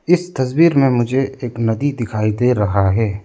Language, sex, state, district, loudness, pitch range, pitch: Hindi, male, Arunachal Pradesh, Lower Dibang Valley, -17 LUFS, 110-135 Hz, 120 Hz